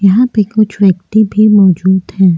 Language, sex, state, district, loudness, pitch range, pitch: Hindi, female, Uttar Pradesh, Jyotiba Phule Nagar, -10 LUFS, 190-215 Hz, 200 Hz